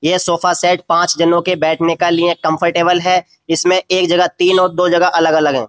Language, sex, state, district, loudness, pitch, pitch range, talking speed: Hindi, male, Uttar Pradesh, Jyotiba Phule Nagar, -13 LUFS, 175 Hz, 170-180 Hz, 210 wpm